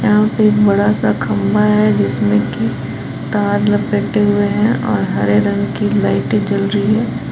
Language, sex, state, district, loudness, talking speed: Hindi, female, Jharkhand, Palamu, -15 LUFS, 170 wpm